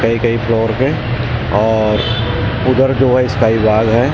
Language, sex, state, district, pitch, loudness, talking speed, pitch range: Hindi, male, Maharashtra, Mumbai Suburban, 115 Hz, -14 LUFS, 220 wpm, 110-125 Hz